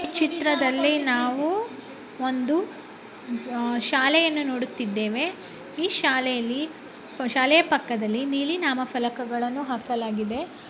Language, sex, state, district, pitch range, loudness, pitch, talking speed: Kannada, male, Karnataka, Bellary, 245-310 Hz, -24 LUFS, 265 Hz, 80 wpm